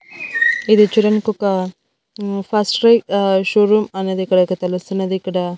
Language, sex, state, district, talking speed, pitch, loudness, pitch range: Telugu, female, Andhra Pradesh, Annamaya, 120 wpm, 195 Hz, -16 LUFS, 185-215 Hz